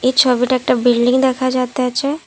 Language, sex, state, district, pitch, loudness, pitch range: Bengali, female, Assam, Kamrup Metropolitan, 255 Hz, -15 LUFS, 250-260 Hz